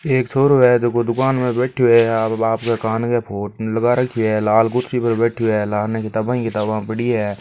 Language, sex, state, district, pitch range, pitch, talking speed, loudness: Hindi, male, Rajasthan, Churu, 110-125 Hz, 115 Hz, 220 wpm, -18 LUFS